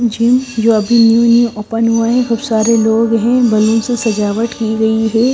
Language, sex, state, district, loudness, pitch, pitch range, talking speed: Hindi, female, Odisha, Sambalpur, -12 LUFS, 230 Hz, 220-235 Hz, 200 wpm